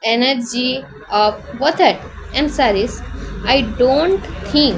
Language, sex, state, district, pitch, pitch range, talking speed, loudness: Odia, female, Odisha, Sambalpur, 260 Hz, 230-290 Hz, 140 wpm, -17 LUFS